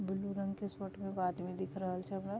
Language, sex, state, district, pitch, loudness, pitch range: Maithili, female, Bihar, Vaishali, 195 Hz, -40 LUFS, 185-195 Hz